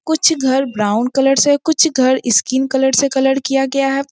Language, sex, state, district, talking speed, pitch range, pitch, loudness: Hindi, female, Jharkhand, Sahebganj, 205 wpm, 260-275 Hz, 270 Hz, -14 LUFS